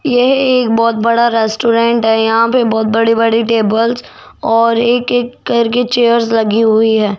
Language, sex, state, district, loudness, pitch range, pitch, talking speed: Hindi, female, Rajasthan, Jaipur, -12 LUFS, 225-240 Hz, 230 Hz, 165 wpm